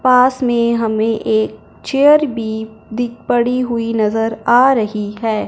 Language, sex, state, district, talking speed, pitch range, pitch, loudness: Hindi, male, Punjab, Fazilka, 140 wpm, 220-250 Hz, 235 Hz, -15 LUFS